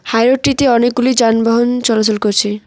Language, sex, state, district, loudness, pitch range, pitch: Bengali, female, West Bengal, Cooch Behar, -13 LUFS, 220-245 Hz, 235 Hz